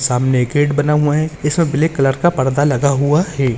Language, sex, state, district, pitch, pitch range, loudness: Hindi, male, Maharashtra, Pune, 145 Hz, 135-150 Hz, -15 LUFS